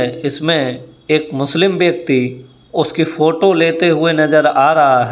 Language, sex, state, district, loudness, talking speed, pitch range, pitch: Hindi, male, Uttar Pradesh, Saharanpur, -14 LUFS, 140 wpm, 140-165 Hz, 155 Hz